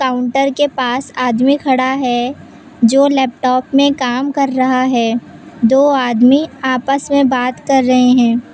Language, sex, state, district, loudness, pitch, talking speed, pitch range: Hindi, female, Uttar Pradesh, Lucknow, -13 LUFS, 260 Hz, 150 wpm, 250-275 Hz